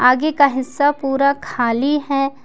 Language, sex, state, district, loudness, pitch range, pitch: Hindi, female, Jharkhand, Ranchi, -17 LUFS, 260-285 Hz, 275 Hz